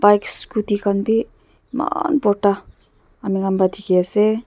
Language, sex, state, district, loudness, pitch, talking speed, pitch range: Nagamese, female, Nagaland, Dimapur, -19 LUFS, 205 Hz, 145 wpm, 200-225 Hz